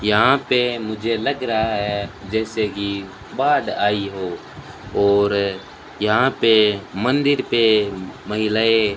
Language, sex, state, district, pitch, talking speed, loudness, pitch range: Hindi, male, Rajasthan, Bikaner, 105 Hz, 120 wpm, -19 LUFS, 100-110 Hz